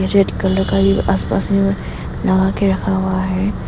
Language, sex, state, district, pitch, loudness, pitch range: Hindi, female, Arunachal Pradesh, Papum Pare, 95 Hz, -17 LUFS, 95-100 Hz